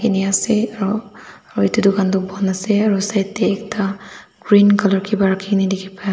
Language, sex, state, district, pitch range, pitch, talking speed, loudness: Nagamese, female, Nagaland, Dimapur, 195-210 Hz, 200 Hz, 205 wpm, -17 LUFS